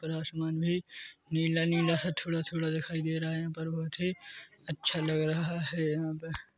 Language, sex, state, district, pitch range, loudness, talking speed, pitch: Hindi, male, Chhattisgarh, Korba, 160-165 Hz, -32 LUFS, 180 wpm, 160 Hz